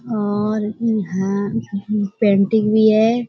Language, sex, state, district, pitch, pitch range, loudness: Hindi, female, Uttar Pradesh, Budaun, 215 Hz, 200-220 Hz, -18 LUFS